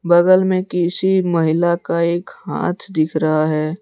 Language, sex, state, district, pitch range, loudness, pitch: Hindi, male, Jharkhand, Deoghar, 160-185 Hz, -17 LUFS, 170 Hz